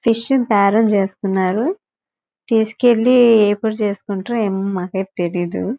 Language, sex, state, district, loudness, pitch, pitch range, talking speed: Telugu, male, Andhra Pradesh, Guntur, -17 LUFS, 215 Hz, 195-230 Hz, 115 wpm